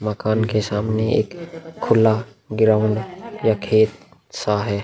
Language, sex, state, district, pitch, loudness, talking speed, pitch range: Hindi, male, Bihar, Vaishali, 110 Hz, -20 LUFS, 125 wpm, 105-115 Hz